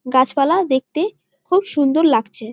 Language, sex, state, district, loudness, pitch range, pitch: Bengali, female, West Bengal, Jalpaiguri, -17 LUFS, 255-345 Hz, 285 Hz